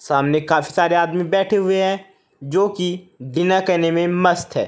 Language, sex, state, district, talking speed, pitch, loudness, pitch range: Hindi, male, Uttar Pradesh, Saharanpur, 180 wpm, 175 Hz, -18 LUFS, 165-190 Hz